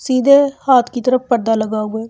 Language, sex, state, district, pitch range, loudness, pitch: Hindi, female, Delhi, New Delhi, 225-260 Hz, -14 LUFS, 245 Hz